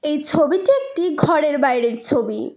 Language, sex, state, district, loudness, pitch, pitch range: Bengali, female, West Bengal, Cooch Behar, -18 LUFS, 290 Hz, 260-305 Hz